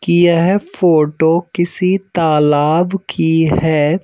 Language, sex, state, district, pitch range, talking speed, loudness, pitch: Hindi, male, Madhya Pradesh, Bhopal, 160-180 Hz, 105 wpm, -14 LUFS, 170 Hz